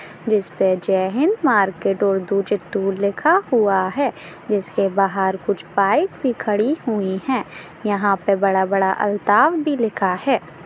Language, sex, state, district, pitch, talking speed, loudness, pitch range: Hindi, female, Andhra Pradesh, Chittoor, 200 Hz, 140 wpm, -19 LUFS, 195-230 Hz